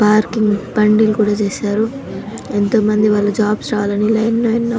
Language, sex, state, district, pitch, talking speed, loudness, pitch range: Telugu, female, Telangana, Nalgonda, 215 Hz, 150 wpm, -15 LUFS, 210-220 Hz